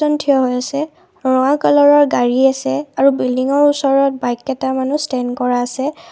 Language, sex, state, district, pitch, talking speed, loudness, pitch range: Assamese, female, Assam, Kamrup Metropolitan, 265 Hz, 155 wpm, -15 LUFS, 250-290 Hz